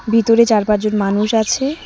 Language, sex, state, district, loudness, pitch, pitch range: Bengali, female, West Bengal, Cooch Behar, -15 LUFS, 220 Hz, 210-230 Hz